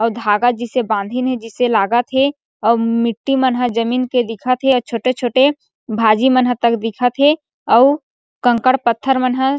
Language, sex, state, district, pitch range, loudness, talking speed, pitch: Chhattisgarhi, female, Chhattisgarh, Sarguja, 230-260 Hz, -16 LUFS, 175 wpm, 245 Hz